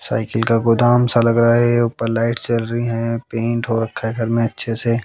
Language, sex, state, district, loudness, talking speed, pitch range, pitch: Hindi, male, Haryana, Jhajjar, -18 LUFS, 235 wpm, 115-120 Hz, 115 Hz